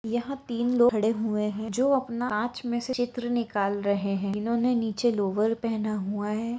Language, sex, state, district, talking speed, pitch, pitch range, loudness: Hindi, female, Jharkhand, Jamtara, 200 wpm, 230 Hz, 210-240 Hz, -27 LUFS